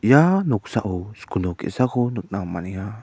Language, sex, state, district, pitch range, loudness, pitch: Garo, male, Meghalaya, West Garo Hills, 95-125 Hz, -23 LUFS, 110 Hz